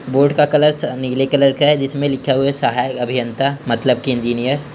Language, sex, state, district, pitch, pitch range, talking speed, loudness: Hindi, male, Uttar Pradesh, Hamirpur, 135 Hz, 130-145 Hz, 215 wpm, -16 LUFS